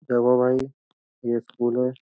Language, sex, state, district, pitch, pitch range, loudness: Hindi, male, Uttar Pradesh, Jyotiba Phule Nagar, 125 Hz, 120-130 Hz, -23 LUFS